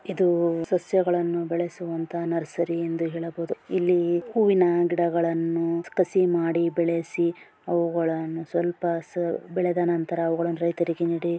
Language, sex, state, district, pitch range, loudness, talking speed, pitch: Kannada, female, Karnataka, Dharwad, 170-175 Hz, -25 LUFS, 100 wpm, 170 Hz